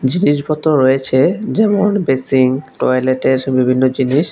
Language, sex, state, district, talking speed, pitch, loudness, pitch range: Bengali, male, Tripura, West Tripura, 95 wpm, 130 Hz, -14 LUFS, 130-155 Hz